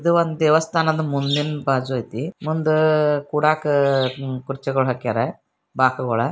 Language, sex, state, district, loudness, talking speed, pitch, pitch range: Kannada, male, Karnataka, Bijapur, -20 LUFS, 105 wpm, 145 Hz, 130-155 Hz